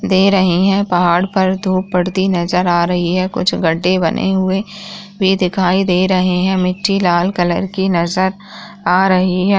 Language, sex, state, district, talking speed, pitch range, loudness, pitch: Hindi, female, Rajasthan, Churu, 175 wpm, 180-190 Hz, -15 LUFS, 185 Hz